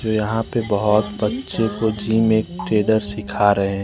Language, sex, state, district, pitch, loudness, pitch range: Hindi, male, Bihar, West Champaran, 110 Hz, -20 LUFS, 105-110 Hz